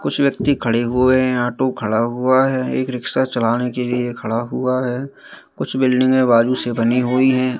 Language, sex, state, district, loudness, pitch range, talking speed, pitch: Hindi, male, Madhya Pradesh, Katni, -18 LUFS, 120-130 Hz, 190 wpm, 125 Hz